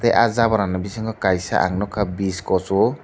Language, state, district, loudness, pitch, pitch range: Kokborok, Tripura, Dhalai, -20 LUFS, 100 Hz, 95-110 Hz